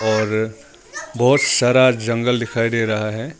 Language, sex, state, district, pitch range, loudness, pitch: Hindi, male, Arunachal Pradesh, Longding, 110-125 Hz, -18 LUFS, 115 Hz